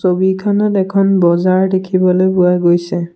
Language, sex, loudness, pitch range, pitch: Assamese, male, -13 LUFS, 180-190 Hz, 185 Hz